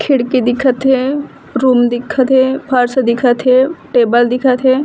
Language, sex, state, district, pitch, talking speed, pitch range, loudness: Chhattisgarhi, female, Chhattisgarh, Bilaspur, 255 Hz, 150 wpm, 245-265 Hz, -13 LUFS